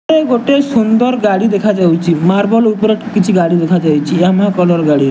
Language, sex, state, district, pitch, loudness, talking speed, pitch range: Odia, male, Odisha, Nuapada, 200 Hz, -12 LUFS, 155 wpm, 170-225 Hz